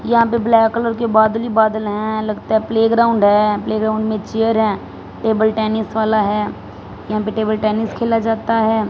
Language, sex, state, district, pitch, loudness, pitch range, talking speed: Hindi, female, Punjab, Fazilka, 220 Hz, -17 LUFS, 215-225 Hz, 190 wpm